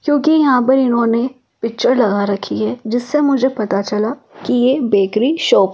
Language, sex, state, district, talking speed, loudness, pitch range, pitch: Hindi, female, Delhi, New Delhi, 175 wpm, -15 LUFS, 210-265 Hz, 240 Hz